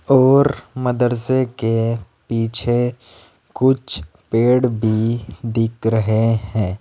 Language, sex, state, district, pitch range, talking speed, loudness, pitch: Hindi, male, Uttar Pradesh, Saharanpur, 110-125 Hz, 90 wpm, -18 LUFS, 115 Hz